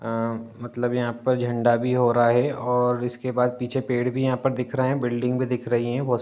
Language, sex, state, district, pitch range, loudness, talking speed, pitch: Hindi, male, Uttar Pradesh, Ghazipur, 120-125 Hz, -24 LUFS, 200 wpm, 125 Hz